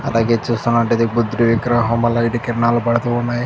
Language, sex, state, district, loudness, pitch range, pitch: Telugu, male, Andhra Pradesh, Chittoor, -17 LUFS, 115-120 Hz, 120 Hz